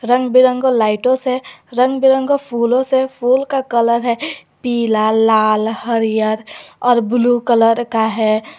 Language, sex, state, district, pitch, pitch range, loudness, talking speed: Hindi, female, Jharkhand, Garhwa, 240 Hz, 225-255 Hz, -15 LUFS, 140 wpm